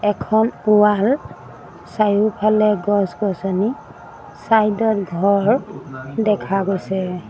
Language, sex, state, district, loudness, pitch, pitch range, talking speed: Assamese, female, Assam, Sonitpur, -18 LUFS, 205 Hz, 190-215 Hz, 75 wpm